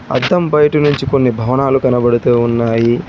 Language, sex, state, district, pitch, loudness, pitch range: Telugu, male, Telangana, Hyderabad, 125 Hz, -13 LUFS, 120-140 Hz